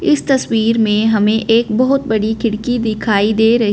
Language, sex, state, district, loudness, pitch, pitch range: Hindi, female, Punjab, Fazilka, -14 LUFS, 225 Hz, 215-240 Hz